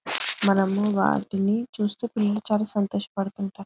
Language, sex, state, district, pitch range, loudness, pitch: Telugu, female, Telangana, Karimnagar, 195-210 Hz, -25 LUFS, 205 Hz